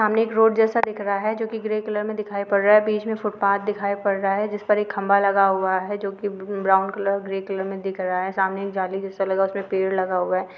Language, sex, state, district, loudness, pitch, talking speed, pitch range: Hindi, female, Rajasthan, Nagaur, -22 LUFS, 200 Hz, 290 wpm, 195-210 Hz